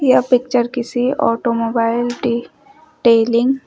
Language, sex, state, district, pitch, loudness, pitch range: Hindi, female, Uttar Pradesh, Shamli, 245 Hz, -16 LUFS, 235-255 Hz